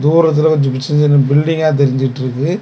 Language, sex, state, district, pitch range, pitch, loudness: Tamil, male, Tamil Nadu, Kanyakumari, 135-155 Hz, 150 Hz, -13 LUFS